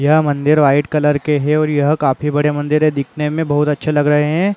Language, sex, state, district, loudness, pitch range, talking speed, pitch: Chhattisgarhi, male, Chhattisgarh, Raigarh, -15 LUFS, 145-155 Hz, 250 wpm, 150 Hz